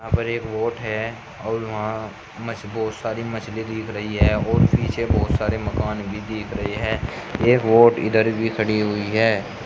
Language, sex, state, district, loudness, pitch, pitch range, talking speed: Hindi, male, Uttar Pradesh, Shamli, -22 LUFS, 110 Hz, 105-115 Hz, 185 wpm